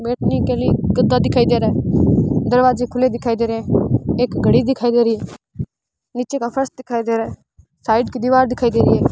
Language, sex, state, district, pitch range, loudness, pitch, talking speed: Hindi, female, Rajasthan, Bikaner, 235-255 Hz, -17 LUFS, 245 Hz, 225 wpm